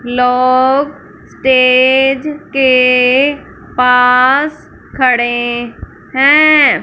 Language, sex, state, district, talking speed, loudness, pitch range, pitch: Hindi, female, Punjab, Fazilka, 55 wpm, -10 LUFS, 250-280 Hz, 260 Hz